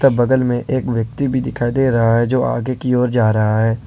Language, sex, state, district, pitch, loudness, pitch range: Hindi, male, Jharkhand, Ranchi, 120 Hz, -17 LUFS, 115-130 Hz